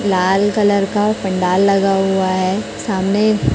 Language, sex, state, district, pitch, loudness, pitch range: Hindi, female, Chhattisgarh, Raipur, 195 Hz, -16 LUFS, 190-205 Hz